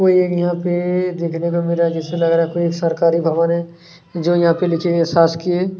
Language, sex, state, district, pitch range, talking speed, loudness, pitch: Hindi, male, Chhattisgarh, Kabirdham, 165-175 Hz, 250 wpm, -17 LUFS, 170 Hz